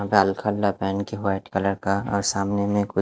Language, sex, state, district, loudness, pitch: Hindi, male, Haryana, Rohtak, -24 LUFS, 100 Hz